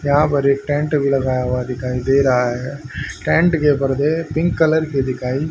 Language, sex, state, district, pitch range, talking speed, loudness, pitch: Hindi, male, Haryana, Rohtak, 130-150 Hz, 215 wpm, -18 LUFS, 140 Hz